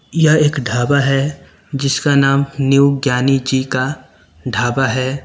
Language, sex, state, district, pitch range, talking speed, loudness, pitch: Hindi, male, Uttar Pradesh, Lucknow, 130-140 Hz, 135 wpm, -15 LUFS, 135 Hz